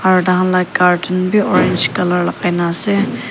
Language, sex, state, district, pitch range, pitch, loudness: Nagamese, female, Nagaland, Kohima, 180-190 Hz, 185 Hz, -15 LUFS